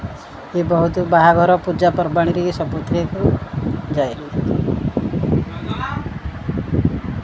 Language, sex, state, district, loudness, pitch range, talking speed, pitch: Odia, female, Odisha, Khordha, -19 LUFS, 170-175 Hz, 85 wpm, 175 Hz